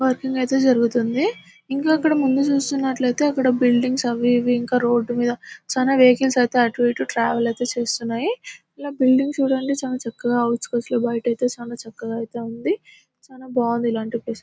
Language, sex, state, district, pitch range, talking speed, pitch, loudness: Telugu, female, Telangana, Nalgonda, 235-265 Hz, 170 wpm, 245 Hz, -20 LUFS